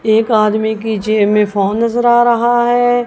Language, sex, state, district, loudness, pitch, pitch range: Hindi, female, Punjab, Kapurthala, -13 LUFS, 220 Hz, 215-240 Hz